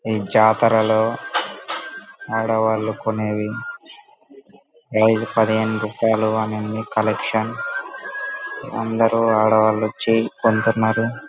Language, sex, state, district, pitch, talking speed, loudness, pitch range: Telugu, male, Andhra Pradesh, Anantapur, 110 Hz, 70 wpm, -20 LUFS, 110-135 Hz